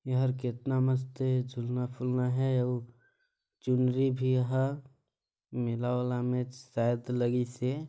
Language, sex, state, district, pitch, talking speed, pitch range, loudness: Chhattisgarhi, male, Chhattisgarh, Balrampur, 125 Hz, 120 wpm, 125-130 Hz, -31 LUFS